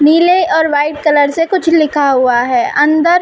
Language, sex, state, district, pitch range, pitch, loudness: Hindi, female, Uttar Pradesh, Gorakhpur, 290-340 Hz, 310 Hz, -11 LUFS